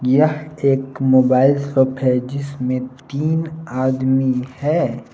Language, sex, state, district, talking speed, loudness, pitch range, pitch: Hindi, male, Jharkhand, Palamu, 105 wpm, -18 LUFS, 130-140 Hz, 135 Hz